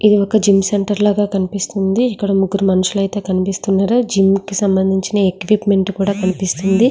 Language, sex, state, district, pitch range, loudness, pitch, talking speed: Telugu, female, Andhra Pradesh, Srikakulam, 190-205 Hz, -15 LUFS, 195 Hz, 150 wpm